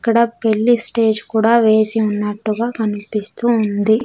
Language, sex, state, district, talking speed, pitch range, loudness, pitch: Telugu, female, Andhra Pradesh, Sri Satya Sai, 120 wpm, 215-235 Hz, -16 LUFS, 220 Hz